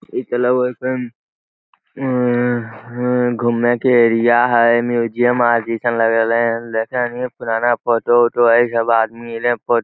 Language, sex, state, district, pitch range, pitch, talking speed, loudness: Magahi, male, Bihar, Lakhisarai, 115-120 Hz, 120 Hz, 145 wpm, -16 LUFS